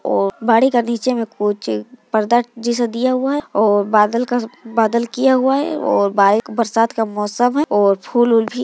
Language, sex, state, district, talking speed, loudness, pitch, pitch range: Hindi, female, Bihar, Muzaffarpur, 215 wpm, -17 LUFS, 230 Hz, 215-250 Hz